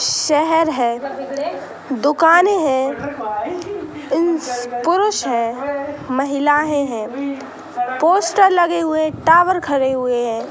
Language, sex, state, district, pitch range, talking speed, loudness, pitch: Hindi, female, Bihar, Gopalganj, 265-335 Hz, 90 wpm, -17 LUFS, 290 Hz